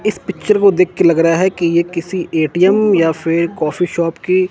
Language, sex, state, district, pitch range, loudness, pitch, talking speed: Hindi, male, Chandigarh, Chandigarh, 165-185 Hz, -14 LUFS, 175 Hz, 225 wpm